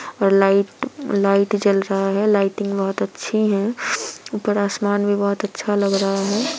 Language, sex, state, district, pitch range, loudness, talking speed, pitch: Hindi, female, Bihar, Muzaffarpur, 195-210 Hz, -20 LUFS, 165 wpm, 200 Hz